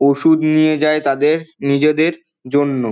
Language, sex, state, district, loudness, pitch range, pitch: Bengali, male, West Bengal, Dakshin Dinajpur, -15 LUFS, 140-160 Hz, 155 Hz